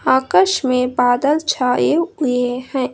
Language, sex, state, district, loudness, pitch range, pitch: Hindi, female, Karnataka, Bangalore, -17 LUFS, 250-295 Hz, 260 Hz